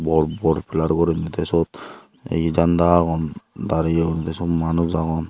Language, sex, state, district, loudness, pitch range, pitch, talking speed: Chakma, male, Tripura, Unakoti, -21 LUFS, 80-85 Hz, 80 Hz, 160 wpm